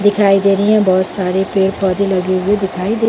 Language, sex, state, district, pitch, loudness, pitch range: Hindi, female, Chhattisgarh, Bilaspur, 195 Hz, -14 LUFS, 185-205 Hz